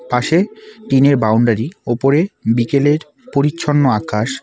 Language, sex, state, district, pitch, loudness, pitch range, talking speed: Bengali, male, West Bengal, Alipurduar, 140 Hz, -16 LUFS, 120-155 Hz, 110 wpm